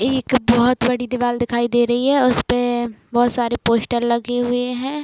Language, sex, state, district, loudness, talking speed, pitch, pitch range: Hindi, female, Chhattisgarh, Raigarh, -18 LUFS, 200 wpm, 245 Hz, 240-250 Hz